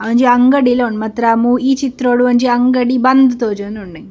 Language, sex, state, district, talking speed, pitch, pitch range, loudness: Tulu, female, Karnataka, Dakshina Kannada, 175 wpm, 245 Hz, 230-255 Hz, -13 LUFS